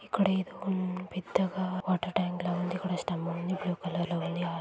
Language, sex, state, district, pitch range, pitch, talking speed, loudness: Telugu, female, Andhra Pradesh, Guntur, 175-185 Hz, 180 Hz, 65 wpm, -32 LUFS